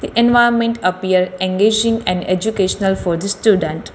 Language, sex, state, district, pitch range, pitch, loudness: English, female, Telangana, Hyderabad, 185-225 Hz, 195 Hz, -16 LUFS